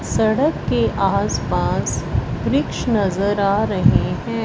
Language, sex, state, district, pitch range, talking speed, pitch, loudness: Hindi, female, Punjab, Fazilka, 190-220 Hz, 110 wpm, 200 Hz, -19 LUFS